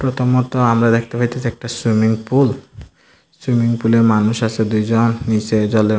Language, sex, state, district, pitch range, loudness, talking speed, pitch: Bengali, male, Tripura, Dhalai, 110-125 Hz, -16 LUFS, 160 wpm, 115 Hz